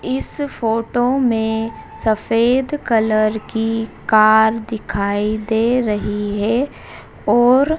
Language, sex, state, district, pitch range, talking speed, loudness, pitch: Hindi, female, Madhya Pradesh, Dhar, 215-245 Hz, 90 wpm, -17 LUFS, 225 Hz